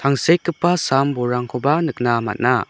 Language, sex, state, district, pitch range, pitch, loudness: Garo, male, Meghalaya, South Garo Hills, 125-160 Hz, 135 Hz, -19 LUFS